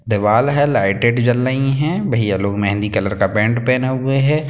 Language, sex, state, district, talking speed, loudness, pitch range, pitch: Hindi, male, Bihar, Sitamarhi, 200 wpm, -16 LUFS, 105-135 Hz, 120 Hz